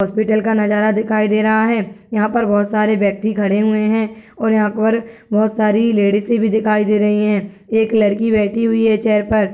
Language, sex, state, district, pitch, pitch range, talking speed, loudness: Hindi, male, Uttar Pradesh, Gorakhpur, 215 Hz, 210-220 Hz, 215 wpm, -16 LUFS